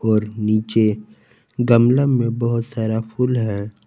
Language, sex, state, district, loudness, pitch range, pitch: Hindi, male, Jharkhand, Palamu, -19 LUFS, 110-120 Hz, 110 Hz